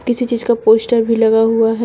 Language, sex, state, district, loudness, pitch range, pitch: Hindi, female, Uttar Pradesh, Shamli, -14 LUFS, 225-235 Hz, 230 Hz